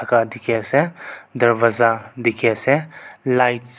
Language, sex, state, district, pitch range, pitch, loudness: Nagamese, male, Nagaland, Kohima, 115-125 Hz, 120 Hz, -19 LUFS